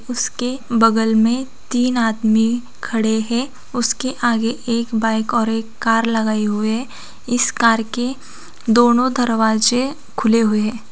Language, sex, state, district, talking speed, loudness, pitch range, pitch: Hindi, female, Bihar, Gopalganj, 135 wpm, -18 LUFS, 225-245 Hz, 230 Hz